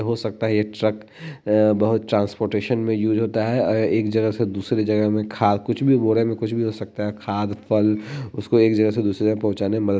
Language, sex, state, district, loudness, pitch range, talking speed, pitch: Hindi, male, Bihar, Muzaffarpur, -21 LUFS, 105-115 Hz, 250 wpm, 110 Hz